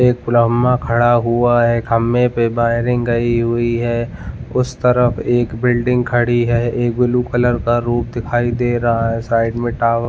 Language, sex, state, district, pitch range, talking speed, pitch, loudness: Hindi, male, Jharkhand, Jamtara, 115-120 Hz, 180 wpm, 120 Hz, -16 LUFS